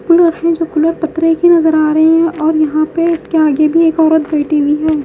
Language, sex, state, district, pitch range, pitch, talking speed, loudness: Hindi, female, Haryana, Jhajjar, 310-330 Hz, 320 Hz, 250 wpm, -12 LUFS